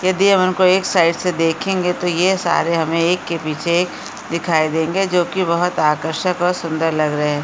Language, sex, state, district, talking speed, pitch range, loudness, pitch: Hindi, female, Bihar, Supaul, 210 wpm, 160-185 Hz, -17 LUFS, 170 Hz